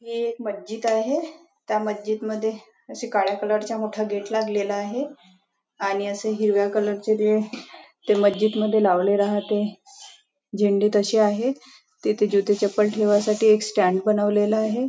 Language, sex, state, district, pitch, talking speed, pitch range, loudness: Marathi, female, Maharashtra, Nagpur, 215 Hz, 155 wpm, 205-220 Hz, -22 LUFS